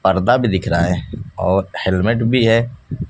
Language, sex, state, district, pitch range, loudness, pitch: Hindi, male, Bihar, West Champaran, 95-115 Hz, -17 LUFS, 110 Hz